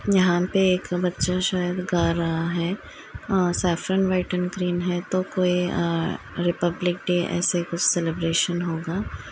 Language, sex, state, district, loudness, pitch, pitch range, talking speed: Hindi, female, Uttar Pradesh, Varanasi, -24 LUFS, 180 Hz, 170-185 Hz, 140 wpm